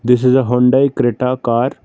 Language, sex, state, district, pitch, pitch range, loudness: English, male, Karnataka, Bangalore, 125 Hz, 125-130 Hz, -14 LUFS